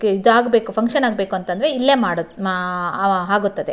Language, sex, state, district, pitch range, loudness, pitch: Kannada, female, Karnataka, Shimoga, 185-240 Hz, -18 LUFS, 205 Hz